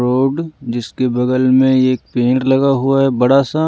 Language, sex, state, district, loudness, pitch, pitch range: Hindi, male, Delhi, New Delhi, -15 LUFS, 130 Hz, 125-135 Hz